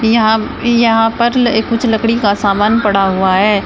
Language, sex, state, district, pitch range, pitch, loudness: Hindi, female, Uttar Pradesh, Shamli, 205-230 Hz, 220 Hz, -12 LUFS